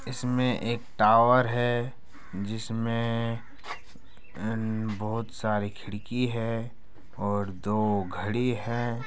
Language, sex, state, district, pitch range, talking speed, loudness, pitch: Hindi, male, Bihar, Araria, 105-120 Hz, 100 wpm, -28 LUFS, 115 Hz